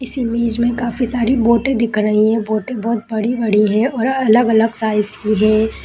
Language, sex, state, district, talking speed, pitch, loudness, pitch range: Hindi, female, Bihar, Madhepura, 205 wpm, 230 Hz, -16 LUFS, 215-240 Hz